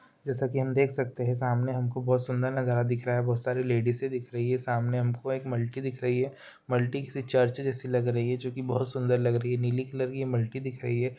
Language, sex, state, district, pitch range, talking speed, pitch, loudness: Hindi, male, Bihar, Muzaffarpur, 120-130 Hz, 250 wpm, 125 Hz, -29 LUFS